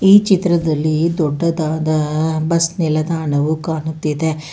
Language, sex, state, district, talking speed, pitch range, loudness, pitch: Kannada, female, Karnataka, Bangalore, 80 wpm, 155-165 Hz, -17 LUFS, 160 Hz